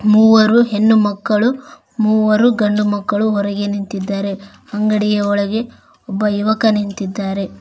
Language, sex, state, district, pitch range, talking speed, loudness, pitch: Kannada, female, Karnataka, Koppal, 205-220 Hz, 100 wpm, -15 LUFS, 210 Hz